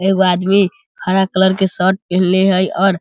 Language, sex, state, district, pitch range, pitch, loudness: Hindi, male, Bihar, Sitamarhi, 185-195 Hz, 190 Hz, -14 LUFS